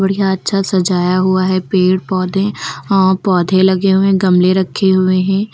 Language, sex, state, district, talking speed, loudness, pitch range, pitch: Hindi, male, Uttar Pradesh, Lucknow, 160 wpm, -13 LUFS, 185-195 Hz, 190 Hz